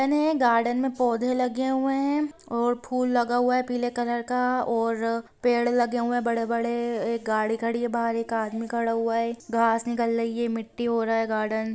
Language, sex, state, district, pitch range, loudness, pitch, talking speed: Hindi, female, Bihar, Gopalganj, 230-245 Hz, -25 LUFS, 235 Hz, 210 wpm